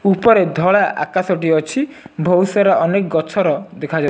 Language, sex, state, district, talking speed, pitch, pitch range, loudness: Odia, male, Odisha, Nuapada, 145 wpm, 185 Hz, 160-200 Hz, -16 LUFS